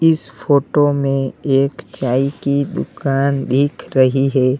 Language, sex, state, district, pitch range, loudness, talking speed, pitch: Hindi, male, Uttar Pradesh, Lalitpur, 135-145 Hz, -17 LUFS, 130 wpm, 135 Hz